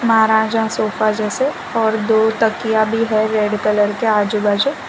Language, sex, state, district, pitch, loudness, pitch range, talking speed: Hindi, female, Gujarat, Valsad, 220 Hz, -16 LUFS, 215-225 Hz, 160 wpm